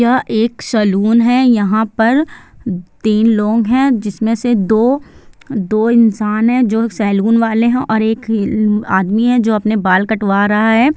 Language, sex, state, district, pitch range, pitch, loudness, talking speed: Hindi, female, Bihar, Sitamarhi, 210-235 Hz, 220 Hz, -13 LUFS, 165 wpm